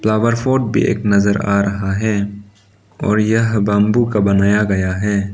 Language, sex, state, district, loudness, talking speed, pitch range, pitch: Hindi, male, Arunachal Pradesh, Lower Dibang Valley, -16 LUFS, 170 wpm, 100-110 Hz, 105 Hz